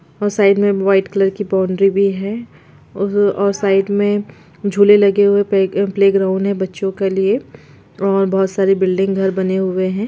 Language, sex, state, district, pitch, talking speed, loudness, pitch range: Hindi, female, Bihar, Gopalganj, 195 Hz, 170 wpm, -15 LUFS, 190-200 Hz